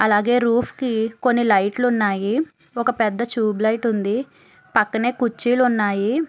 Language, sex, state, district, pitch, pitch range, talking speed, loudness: Telugu, female, Telangana, Hyderabad, 230 Hz, 215-245 Hz, 135 wpm, -20 LUFS